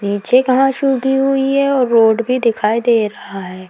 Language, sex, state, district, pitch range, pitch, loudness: Hindi, female, Uttar Pradesh, Deoria, 215-270 Hz, 240 Hz, -14 LUFS